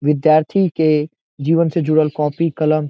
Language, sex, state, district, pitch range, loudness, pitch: Bhojpuri, male, Bihar, Saran, 150-165 Hz, -16 LUFS, 155 Hz